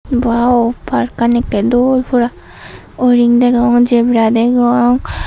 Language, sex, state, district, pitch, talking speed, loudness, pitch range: Chakma, female, Tripura, Dhalai, 240 Hz, 100 wpm, -12 LUFS, 235-245 Hz